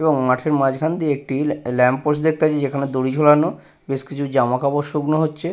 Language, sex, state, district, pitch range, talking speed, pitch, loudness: Bengali, male, West Bengal, Purulia, 135-155 Hz, 205 wpm, 145 Hz, -19 LUFS